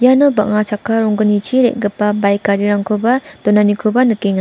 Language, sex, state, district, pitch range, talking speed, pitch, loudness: Garo, female, Meghalaya, West Garo Hills, 205-240 Hz, 110 wpm, 210 Hz, -14 LUFS